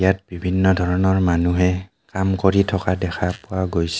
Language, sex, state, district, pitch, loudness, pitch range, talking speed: Assamese, male, Assam, Kamrup Metropolitan, 95 Hz, -20 LUFS, 90-95 Hz, 150 wpm